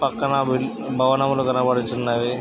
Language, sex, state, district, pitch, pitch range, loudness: Telugu, male, Andhra Pradesh, Krishna, 130 Hz, 125-135 Hz, -21 LUFS